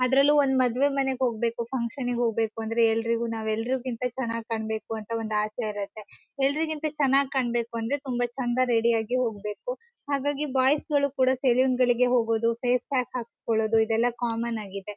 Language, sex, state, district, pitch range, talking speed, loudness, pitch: Kannada, female, Karnataka, Shimoga, 225-260 Hz, 155 wpm, -26 LUFS, 245 Hz